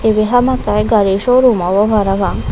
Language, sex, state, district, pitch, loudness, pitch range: Chakma, female, Tripura, Unakoti, 215 Hz, -13 LUFS, 195-245 Hz